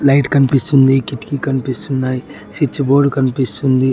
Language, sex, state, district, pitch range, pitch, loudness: Telugu, male, Telangana, Mahabubabad, 130-140 Hz, 135 Hz, -15 LUFS